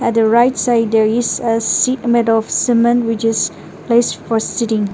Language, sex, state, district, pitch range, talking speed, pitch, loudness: English, female, Nagaland, Dimapur, 225-240 Hz, 180 wpm, 230 Hz, -15 LUFS